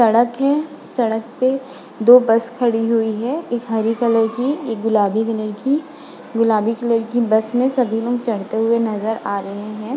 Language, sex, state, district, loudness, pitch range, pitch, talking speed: Hindi, female, Uttar Pradesh, Muzaffarnagar, -18 LUFS, 220-250 Hz, 230 Hz, 180 wpm